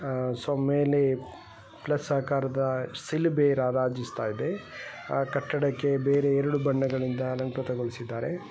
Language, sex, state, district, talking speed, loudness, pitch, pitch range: Kannada, male, Karnataka, Chamarajanagar, 100 wpm, -28 LUFS, 135 Hz, 130-145 Hz